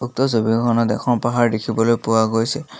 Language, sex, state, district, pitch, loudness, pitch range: Assamese, male, Assam, Kamrup Metropolitan, 115 Hz, -18 LUFS, 115-120 Hz